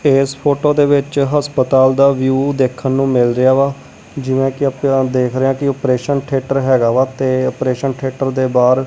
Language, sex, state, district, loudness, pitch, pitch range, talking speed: Punjabi, male, Punjab, Kapurthala, -15 LUFS, 135 Hz, 130-140 Hz, 190 wpm